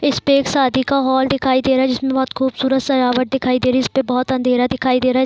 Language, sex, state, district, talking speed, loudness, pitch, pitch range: Hindi, female, Bihar, Sitamarhi, 275 wpm, -16 LUFS, 260 Hz, 255-265 Hz